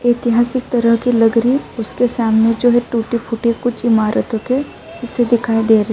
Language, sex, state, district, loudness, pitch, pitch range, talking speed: Urdu, female, Uttar Pradesh, Budaun, -16 LUFS, 235 Hz, 225-245 Hz, 200 wpm